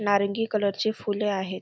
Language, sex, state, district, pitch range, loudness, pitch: Marathi, female, Maharashtra, Dhule, 200-210 Hz, -26 LUFS, 205 Hz